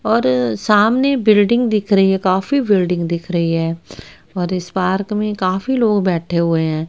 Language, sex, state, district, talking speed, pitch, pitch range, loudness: Hindi, female, Haryana, Rohtak, 175 wpm, 185 Hz, 170-210 Hz, -16 LUFS